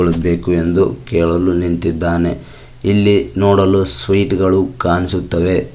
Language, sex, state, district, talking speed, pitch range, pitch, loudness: Kannada, male, Karnataka, Koppal, 95 wpm, 85-95 Hz, 90 Hz, -15 LUFS